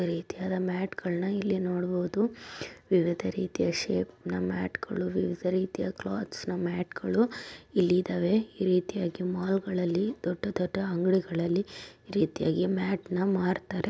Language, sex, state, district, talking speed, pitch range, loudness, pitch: Kannada, female, Karnataka, Chamarajanagar, 125 wpm, 175-195 Hz, -30 LUFS, 185 Hz